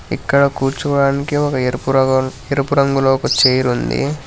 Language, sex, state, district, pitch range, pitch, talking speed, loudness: Telugu, male, Telangana, Hyderabad, 130-140 Hz, 135 Hz, 110 wpm, -16 LUFS